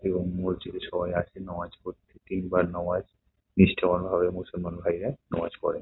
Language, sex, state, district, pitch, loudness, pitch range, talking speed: Bengali, male, West Bengal, Kolkata, 90 Hz, -28 LUFS, 90-95 Hz, 165 wpm